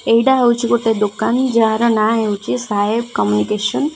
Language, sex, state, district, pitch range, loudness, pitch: Odia, female, Odisha, Khordha, 210-240 Hz, -16 LUFS, 225 Hz